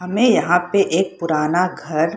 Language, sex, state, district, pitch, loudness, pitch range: Hindi, female, Bihar, Purnia, 180 Hz, -18 LUFS, 165-190 Hz